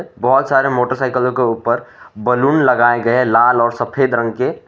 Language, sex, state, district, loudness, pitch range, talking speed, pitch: Hindi, male, Assam, Sonitpur, -15 LUFS, 120-130 Hz, 180 wpm, 125 Hz